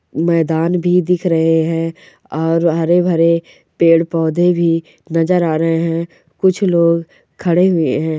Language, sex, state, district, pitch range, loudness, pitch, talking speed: Hindi, female, Jharkhand, Sahebganj, 165-175 Hz, -15 LUFS, 165 Hz, 145 wpm